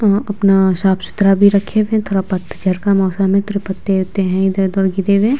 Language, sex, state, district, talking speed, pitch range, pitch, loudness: Hindi, female, Bihar, Vaishali, 210 wpm, 190-200 Hz, 195 Hz, -15 LUFS